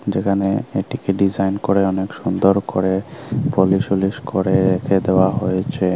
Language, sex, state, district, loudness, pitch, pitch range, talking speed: Bengali, male, Tripura, Unakoti, -18 LUFS, 95 Hz, 95-100 Hz, 130 wpm